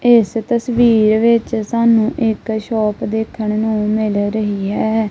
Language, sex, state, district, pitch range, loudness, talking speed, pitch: Punjabi, female, Punjab, Kapurthala, 215-230 Hz, -16 LUFS, 130 wpm, 220 Hz